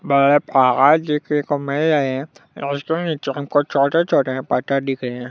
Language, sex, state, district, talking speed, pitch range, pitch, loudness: Hindi, male, Bihar, Kaimur, 180 wpm, 135-150 Hz, 140 Hz, -18 LUFS